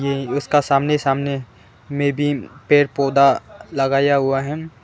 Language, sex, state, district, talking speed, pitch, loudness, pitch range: Hindi, male, Arunachal Pradesh, Lower Dibang Valley, 135 wpm, 140 Hz, -18 LUFS, 135-145 Hz